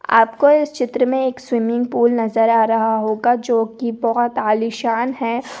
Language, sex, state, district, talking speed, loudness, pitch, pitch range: Hindi, female, Rajasthan, Nagaur, 170 wpm, -17 LUFS, 235 Hz, 225-250 Hz